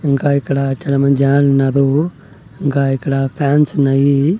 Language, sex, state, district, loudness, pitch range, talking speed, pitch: Telugu, male, Andhra Pradesh, Annamaya, -15 LUFS, 135-145 Hz, 110 wpm, 140 Hz